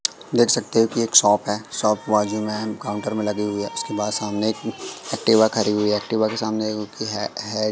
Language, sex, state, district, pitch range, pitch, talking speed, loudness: Hindi, male, Madhya Pradesh, Katni, 105-110 Hz, 110 Hz, 210 wpm, -21 LUFS